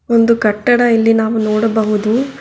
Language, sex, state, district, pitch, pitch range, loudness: Kannada, female, Karnataka, Bangalore, 225 Hz, 215-235 Hz, -13 LUFS